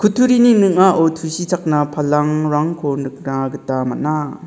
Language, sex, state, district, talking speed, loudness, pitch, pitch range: Garo, male, Meghalaya, South Garo Hills, 95 wpm, -16 LUFS, 155 Hz, 145-180 Hz